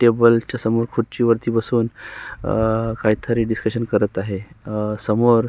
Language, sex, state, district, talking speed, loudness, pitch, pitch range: Marathi, male, Maharashtra, Solapur, 100 wpm, -20 LUFS, 115 Hz, 110-115 Hz